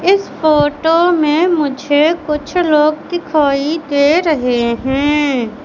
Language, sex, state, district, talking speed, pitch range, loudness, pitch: Hindi, male, Madhya Pradesh, Katni, 105 wpm, 285-325 Hz, -14 LUFS, 300 Hz